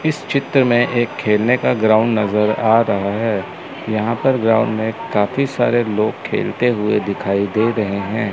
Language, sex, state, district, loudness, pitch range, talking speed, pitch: Hindi, male, Chandigarh, Chandigarh, -17 LUFS, 105-120 Hz, 175 wpm, 110 Hz